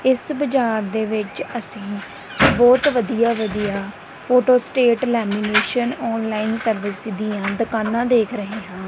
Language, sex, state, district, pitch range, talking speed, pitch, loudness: Punjabi, female, Punjab, Kapurthala, 210-245 Hz, 120 wpm, 225 Hz, -19 LUFS